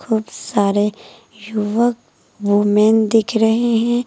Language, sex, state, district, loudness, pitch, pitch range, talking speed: Hindi, female, Uttar Pradesh, Lucknow, -17 LUFS, 220 Hz, 210-230 Hz, 105 wpm